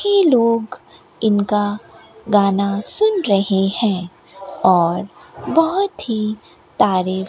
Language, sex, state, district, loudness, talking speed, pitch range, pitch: Hindi, female, Rajasthan, Bikaner, -17 LUFS, 100 wpm, 195-240 Hz, 210 Hz